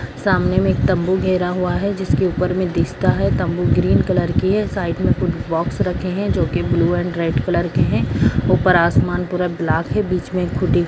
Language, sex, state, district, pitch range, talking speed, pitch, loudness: Hindi, female, Bihar, Jahanabad, 145-180 Hz, 195 wpm, 175 Hz, -18 LUFS